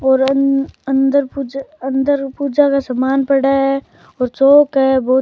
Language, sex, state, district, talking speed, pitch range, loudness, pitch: Rajasthani, male, Rajasthan, Churu, 170 wpm, 265-275 Hz, -15 LUFS, 275 Hz